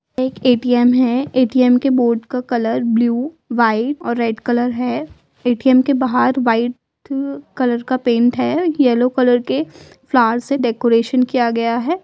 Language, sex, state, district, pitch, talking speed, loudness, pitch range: Hindi, female, Uttar Pradesh, Budaun, 245 Hz, 160 wpm, -16 LUFS, 240-260 Hz